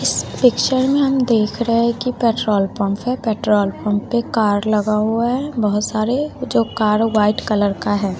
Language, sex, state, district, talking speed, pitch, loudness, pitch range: Hindi, female, Bihar, West Champaran, 190 wpm, 220 Hz, -18 LUFS, 210-245 Hz